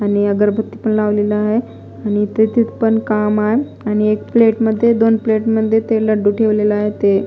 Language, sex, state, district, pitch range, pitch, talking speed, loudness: Marathi, female, Maharashtra, Mumbai Suburban, 210-225 Hz, 215 Hz, 190 wpm, -15 LUFS